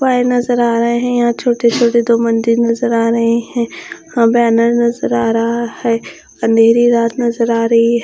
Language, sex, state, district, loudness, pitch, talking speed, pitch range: Hindi, female, Bihar, Katihar, -13 LUFS, 235 Hz, 185 wpm, 230-240 Hz